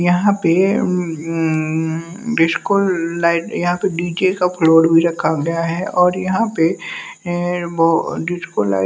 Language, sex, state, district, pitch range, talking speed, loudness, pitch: Hindi, male, Bihar, West Champaran, 165-180 Hz, 150 wpm, -17 LUFS, 170 Hz